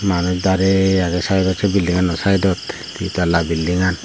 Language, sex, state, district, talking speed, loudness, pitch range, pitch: Chakma, male, Tripura, Unakoti, 150 wpm, -18 LUFS, 90-95 Hz, 95 Hz